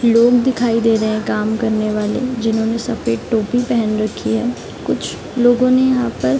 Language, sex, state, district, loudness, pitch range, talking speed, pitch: Hindi, female, Bihar, East Champaran, -17 LUFS, 215-245 Hz, 185 wpm, 230 Hz